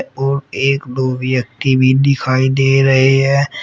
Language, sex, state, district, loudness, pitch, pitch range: Hindi, female, Uttar Pradesh, Shamli, -14 LUFS, 135 Hz, 130-135 Hz